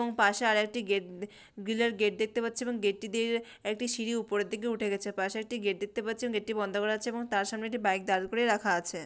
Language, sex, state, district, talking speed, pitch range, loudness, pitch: Bengali, female, West Bengal, Malda, 245 wpm, 205-230 Hz, -31 LUFS, 215 Hz